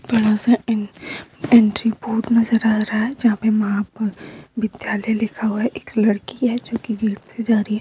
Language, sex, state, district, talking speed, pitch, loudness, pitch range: Hindi, female, Chhattisgarh, Raigarh, 190 wpm, 220 Hz, -19 LUFS, 215-230 Hz